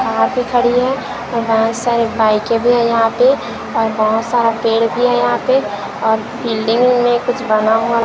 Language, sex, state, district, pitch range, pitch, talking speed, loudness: Hindi, female, Chhattisgarh, Raipur, 225-245 Hz, 230 Hz, 185 wpm, -15 LUFS